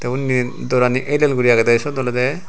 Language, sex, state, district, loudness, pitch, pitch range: Chakma, male, Tripura, Unakoti, -17 LUFS, 125 Hz, 125-135 Hz